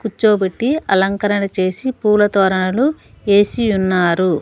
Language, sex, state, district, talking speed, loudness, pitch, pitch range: Telugu, female, Andhra Pradesh, Sri Satya Sai, 95 wpm, -16 LUFS, 200 Hz, 190-220 Hz